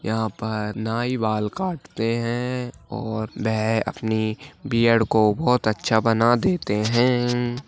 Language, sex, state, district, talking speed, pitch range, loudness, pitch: Hindi, male, Maharashtra, Pune, 125 wpm, 110-120 Hz, -22 LUFS, 115 Hz